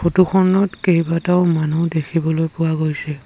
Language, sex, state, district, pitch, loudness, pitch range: Assamese, male, Assam, Sonitpur, 165 Hz, -17 LUFS, 160-180 Hz